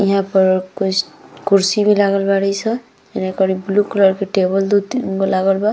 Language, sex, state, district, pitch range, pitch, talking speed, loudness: Bhojpuri, female, Bihar, Gopalganj, 190-200 Hz, 195 Hz, 200 wpm, -16 LUFS